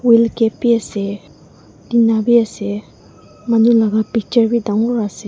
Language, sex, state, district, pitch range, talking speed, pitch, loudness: Nagamese, female, Nagaland, Dimapur, 210-235 Hz, 145 wpm, 225 Hz, -16 LUFS